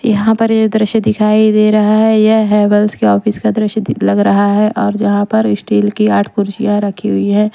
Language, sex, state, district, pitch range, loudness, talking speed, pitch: Hindi, female, Odisha, Nuapada, 200-220 Hz, -12 LUFS, 225 wpm, 210 Hz